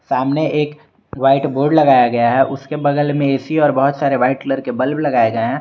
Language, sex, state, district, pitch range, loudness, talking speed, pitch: Hindi, male, Jharkhand, Garhwa, 135-150 Hz, -16 LUFS, 225 wpm, 140 Hz